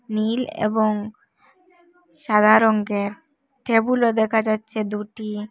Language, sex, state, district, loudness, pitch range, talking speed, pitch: Bengali, female, Assam, Hailakandi, -21 LUFS, 215-250 Hz, 85 wpm, 220 Hz